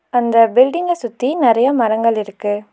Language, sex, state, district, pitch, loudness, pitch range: Tamil, female, Tamil Nadu, Nilgiris, 235 Hz, -15 LUFS, 225-260 Hz